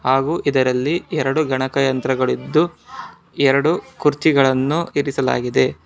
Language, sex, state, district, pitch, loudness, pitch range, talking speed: Kannada, male, Karnataka, Bangalore, 135 Hz, -18 LUFS, 130-145 Hz, 80 wpm